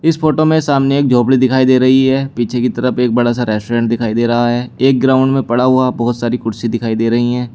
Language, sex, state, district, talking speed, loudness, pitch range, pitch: Hindi, male, Uttar Pradesh, Shamli, 260 wpm, -13 LUFS, 120-130 Hz, 125 Hz